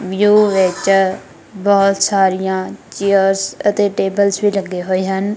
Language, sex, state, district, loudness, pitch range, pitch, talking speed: Punjabi, female, Punjab, Kapurthala, -15 LUFS, 190-200 Hz, 195 Hz, 125 wpm